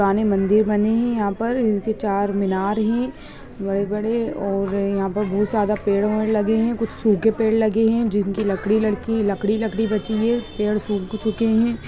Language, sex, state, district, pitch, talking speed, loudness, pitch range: Hindi, male, Bihar, Gaya, 215 Hz, 160 wpm, -21 LUFS, 200-225 Hz